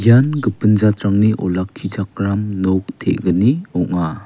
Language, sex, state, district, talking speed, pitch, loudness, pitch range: Garo, male, Meghalaya, West Garo Hills, 100 wpm, 100 Hz, -17 LUFS, 95-110 Hz